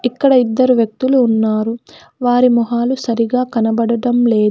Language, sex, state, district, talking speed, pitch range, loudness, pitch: Telugu, female, Telangana, Hyderabad, 120 wpm, 230-250 Hz, -14 LUFS, 240 Hz